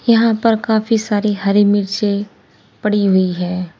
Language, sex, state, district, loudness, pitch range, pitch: Hindi, female, Uttar Pradesh, Saharanpur, -16 LUFS, 195-220 Hz, 205 Hz